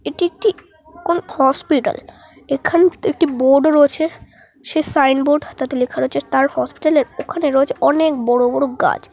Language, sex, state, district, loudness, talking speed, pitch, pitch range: Bengali, male, West Bengal, North 24 Parganas, -17 LUFS, 165 wpm, 295 Hz, 265-325 Hz